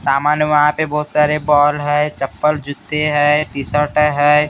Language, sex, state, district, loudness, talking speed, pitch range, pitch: Hindi, male, Maharashtra, Gondia, -15 LUFS, 175 wpm, 145-150 Hz, 150 Hz